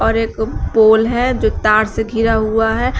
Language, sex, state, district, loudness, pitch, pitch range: Hindi, female, Uttar Pradesh, Shamli, -15 LUFS, 225 Hz, 220-225 Hz